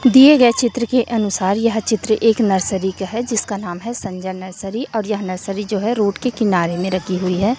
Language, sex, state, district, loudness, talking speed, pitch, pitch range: Hindi, female, Chhattisgarh, Raipur, -18 LUFS, 220 wpm, 210 Hz, 190-235 Hz